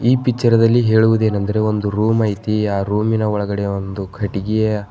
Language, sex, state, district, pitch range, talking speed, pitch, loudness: Kannada, male, Karnataka, Bidar, 100-110 Hz, 145 wpm, 105 Hz, -17 LUFS